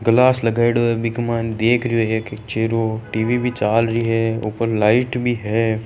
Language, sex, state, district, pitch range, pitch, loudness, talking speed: Marwari, male, Rajasthan, Churu, 110-120 Hz, 115 Hz, -19 LUFS, 175 wpm